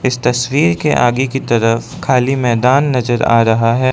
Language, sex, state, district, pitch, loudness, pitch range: Hindi, male, Arunachal Pradesh, Lower Dibang Valley, 125 Hz, -14 LUFS, 120-135 Hz